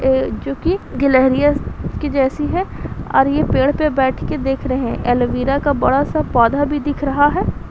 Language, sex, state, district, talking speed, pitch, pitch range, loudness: Hindi, female, Bihar, Kishanganj, 180 wpm, 275 Hz, 260-290 Hz, -17 LUFS